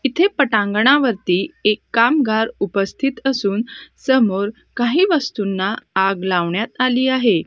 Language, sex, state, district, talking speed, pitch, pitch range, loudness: Marathi, female, Maharashtra, Gondia, 105 wpm, 225 Hz, 200-265 Hz, -18 LUFS